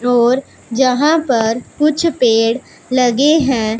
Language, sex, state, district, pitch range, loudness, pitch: Hindi, female, Punjab, Pathankot, 235-290 Hz, -14 LUFS, 250 Hz